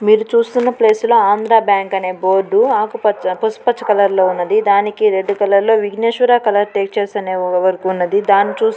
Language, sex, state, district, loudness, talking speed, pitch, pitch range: Telugu, female, Andhra Pradesh, Guntur, -14 LUFS, 170 wpm, 205 Hz, 195-225 Hz